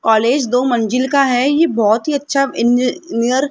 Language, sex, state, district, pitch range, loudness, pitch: Hindi, female, Rajasthan, Jaipur, 235-275 Hz, -15 LUFS, 250 Hz